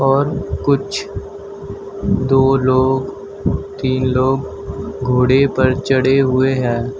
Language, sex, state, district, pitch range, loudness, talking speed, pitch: Hindi, male, Uttar Pradesh, Shamli, 130-135 Hz, -16 LUFS, 95 wpm, 130 Hz